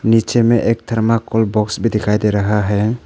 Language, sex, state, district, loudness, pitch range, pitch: Hindi, male, Arunachal Pradesh, Papum Pare, -16 LUFS, 105-115 Hz, 110 Hz